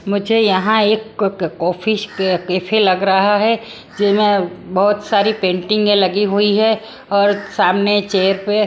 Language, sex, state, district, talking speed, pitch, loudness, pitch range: Hindi, female, Maharashtra, Washim, 145 wpm, 205 Hz, -16 LUFS, 190-215 Hz